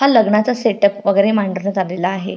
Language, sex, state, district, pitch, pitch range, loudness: Marathi, female, Maharashtra, Pune, 200 Hz, 190-215 Hz, -16 LUFS